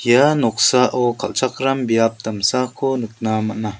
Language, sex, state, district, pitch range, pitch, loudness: Garo, male, Meghalaya, South Garo Hills, 110-130 Hz, 125 Hz, -18 LUFS